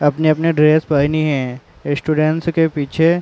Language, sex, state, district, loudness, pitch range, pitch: Hindi, male, Uttar Pradesh, Muzaffarnagar, -16 LUFS, 145-160 Hz, 155 Hz